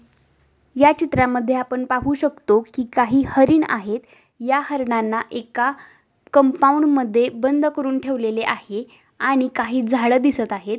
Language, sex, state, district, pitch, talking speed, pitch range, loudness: Marathi, female, Maharashtra, Aurangabad, 255 Hz, 135 wpm, 235-275 Hz, -19 LUFS